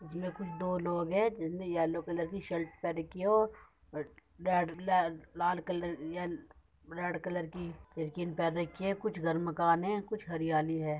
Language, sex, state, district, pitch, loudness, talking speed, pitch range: Hindi, female, Uttar Pradesh, Muzaffarnagar, 175 Hz, -34 LUFS, 185 wpm, 165-180 Hz